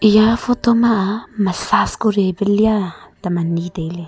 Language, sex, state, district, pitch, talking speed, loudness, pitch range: Wancho, female, Arunachal Pradesh, Longding, 205 Hz, 175 wpm, -17 LUFS, 180-220 Hz